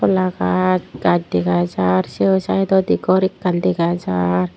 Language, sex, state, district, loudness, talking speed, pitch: Chakma, female, Tripura, Unakoti, -18 LUFS, 145 wpm, 135 Hz